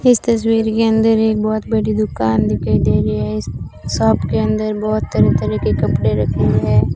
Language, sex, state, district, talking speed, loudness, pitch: Hindi, female, Rajasthan, Bikaner, 190 wpm, -16 LUFS, 110 Hz